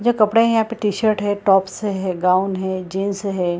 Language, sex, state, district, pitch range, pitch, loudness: Hindi, female, Bihar, Gaya, 190-215 Hz, 200 Hz, -19 LUFS